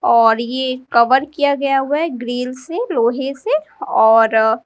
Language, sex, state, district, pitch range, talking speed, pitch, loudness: Hindi, female, Uttar Pradesh, Lalitpur, 235-285 Hz, 155 wpm, 260 Hz, -16 LUFS